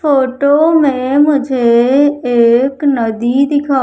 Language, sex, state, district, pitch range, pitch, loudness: Hindi, female, Madhya Pradesh, Umaria, 245-290 Hz, 270 Hz, -11 LUFS